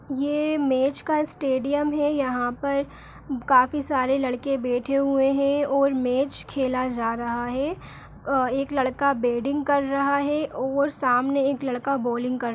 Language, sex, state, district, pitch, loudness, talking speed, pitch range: Kumaoni, female, Uttarakhand, Uttarkashi, 275 Hz, -24 LUFS, 155 wpm, 255-280 Hz